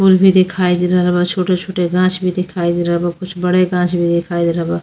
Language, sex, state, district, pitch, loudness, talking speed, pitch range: Bhojpuri, female, Uttar Pradesh, Deoria, 180 Hz, -15 LUFS, 260 wpm, 175-185 Hz